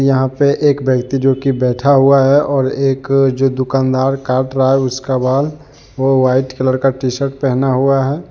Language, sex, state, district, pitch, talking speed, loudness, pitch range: Hindi, male, Jharkhand, Deoghar, 135 Hz, 195 wpm, -14 LUFS, 130-135 Hz